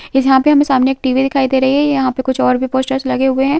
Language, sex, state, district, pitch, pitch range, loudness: Hindi, female, Uttarakhand, Tehri Garhwal, 265 Hz, 260-270 Hz, -14 LUFS